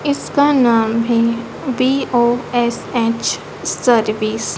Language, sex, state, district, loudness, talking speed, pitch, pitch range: Hindi, female, Madhya Pradesh, Dhar, -16 LUFS, 80 wpm, 240 Hz, 230-260 Hz